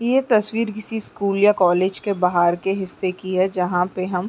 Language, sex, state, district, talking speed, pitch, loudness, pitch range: Hindi, female, Chhattisgarh, Raigarh, 225 wpm, 190 Hz, -20 LUFS, 180-210 Hz